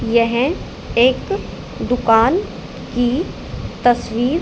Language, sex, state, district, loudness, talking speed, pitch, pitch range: Hindi, female, Haryana, Charkhi Dadri, -18 LUFS, 70 wpm, 245 Hz, 235-290 Hz